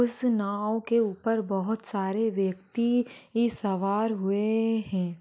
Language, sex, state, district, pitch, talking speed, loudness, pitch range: Hindi, female, Maharashtra, Sindhudurg, 220 Hz, 125 wpm, -28 LUFS, 195-230 Hz